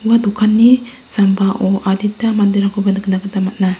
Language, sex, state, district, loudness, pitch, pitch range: Garo, female, Meghalaya, West Garo Hills, -14 LUFS, 200 Hz, 195-220 Hz